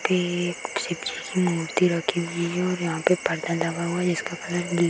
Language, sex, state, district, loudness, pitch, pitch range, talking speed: Hindi, female, Bihar, Darbhanga, -25 LUFS, 175 Hz, 170-180 Hz, 245 wpm